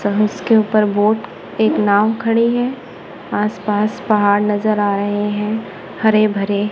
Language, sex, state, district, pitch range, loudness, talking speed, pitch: Hindi, female, Punjab, Kapurthala, 205-220 Hz, -16 LUFS, 150 wpm, 210 Hz